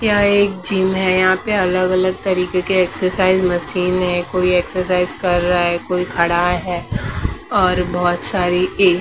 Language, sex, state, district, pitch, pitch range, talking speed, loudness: Hindi, female, Maharashtra, Mumbai Suburban, 180 Hz, 175-185 Hz, 160 wpm, -17 LUFS